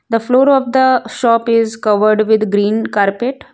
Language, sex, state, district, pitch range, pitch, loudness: English, female, Gujarat, Valsad, 215-250 Hz, 230 Hz, -13 LUFS